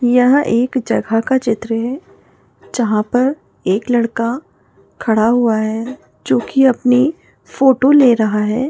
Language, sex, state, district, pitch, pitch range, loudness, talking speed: Hindi, female, Bihar, Muzaffarpur, 245 Hz, 225-260 Hz, -15 LUFS, 140 wpm